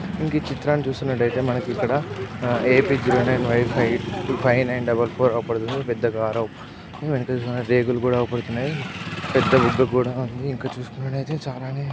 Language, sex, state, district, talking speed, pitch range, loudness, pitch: Telugu, male, Andhra Pradesh, Guntur, 155 wpm, 120-135 Hz, -22 LUFS, 125 Hz